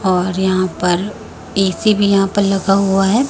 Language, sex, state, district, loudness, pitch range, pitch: Hindi, female, Chhattisgarh, Raipur, -15 LUFS, 185-200 Hz, 195 Hz